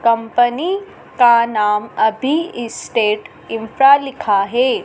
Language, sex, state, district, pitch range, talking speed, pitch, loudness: Hindi, female, Madhya Pradesh, Dhar, 220-275 Hz, 100 wpm, 235 Hz, -16 LUFS